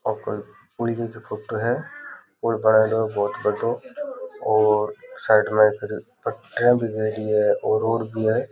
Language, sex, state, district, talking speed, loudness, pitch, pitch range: Rajasthani, male, Rajasthan, Nagaur, 135 wpm, -22 LUFS, 110 Hz, 110-115 Hz